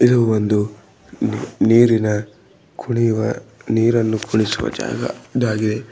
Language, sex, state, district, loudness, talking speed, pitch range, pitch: Kannada, male, Karnataka, Bidar, -18 LUFS, 80 wpm, 105-115 Hz, 110 Hz